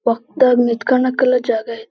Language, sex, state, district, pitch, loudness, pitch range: Kannada, female, Karnataka, Belgaum, 245 Hz, -16 LUFS, 230-255 Hz